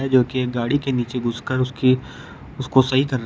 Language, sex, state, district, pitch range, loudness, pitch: Hindi, male, Uttar Pradesh, Shamli, 125-130 Hz, -20 LUFS, 130 Hz